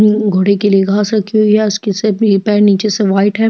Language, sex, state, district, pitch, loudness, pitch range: Hindi, female, Chhattisgarh, Jashpur, 210 Hz, -12 LUFS, 200-215 Hz